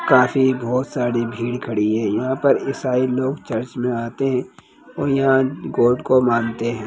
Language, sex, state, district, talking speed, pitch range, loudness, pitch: Hindi, male, Bihar, Jahanabad, 175 wpm, 120-130 Hz, -20 LUFS, 125 Hz